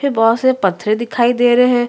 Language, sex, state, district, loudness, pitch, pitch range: Hindi, female, Chhattisgarh, Sukma, -14 LUFS, 240 Hz, 225-250 Hz